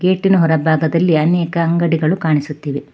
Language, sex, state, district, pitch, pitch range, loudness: Kannada, female, Karnataka, Bangalore, 165 Hz, 155-170 Hz, -15 LUFS